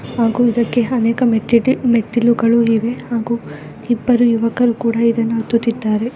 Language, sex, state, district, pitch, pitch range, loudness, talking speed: Kannada, female, Karnataka, Dakshina Kannada, 235 Hz, 230-240 Hz, -16 LUFS, 115 wpm